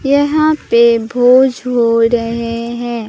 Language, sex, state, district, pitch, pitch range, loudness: Hindi, female, Bihar, Katihar, 240 Hz, 230-260 Hz, -12 LUFS